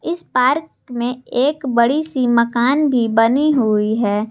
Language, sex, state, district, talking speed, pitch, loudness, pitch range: Hindi, female, Jharkhand, Garhwa, 155 wpm, 245 Hz, -17 LUFS, 230-280 Hz